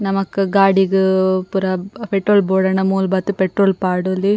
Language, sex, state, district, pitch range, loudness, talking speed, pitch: Tulu, female, Karnataka, Dakshina Kannada, 190-195 Hz, -16 LUFS, 125 wpm, 190 Hz